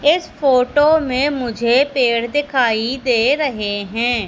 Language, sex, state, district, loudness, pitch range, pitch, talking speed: Hindi, female, Madhya Pradesh, Katni, -16 LUFS, 235-285 Hz, 255 Hz, 125 wpm